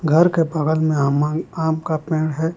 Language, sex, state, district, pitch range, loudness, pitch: Hindi, male, Jharkhand, Palamu, 155-165 Hz, -19 LUFS, 160 Hz